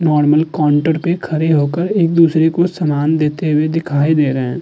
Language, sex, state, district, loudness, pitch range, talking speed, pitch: Hindi, female, Uttar Pradesh, Hamirpur, -14 LUFS, 150-165 Hz, 180 wpm, 155 Hz